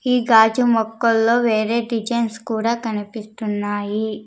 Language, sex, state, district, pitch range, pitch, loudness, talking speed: Telugu, female, Andhra Pradesh, Sri Satya Sai, 215-235 Hz, 225 Hz, -19 LUFS, 100 wpm